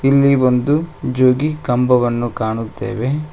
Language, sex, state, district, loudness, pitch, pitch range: Kannada, male, Karnataka, Koppal, -16 LUFS, 125 Hz, 120-140 Hz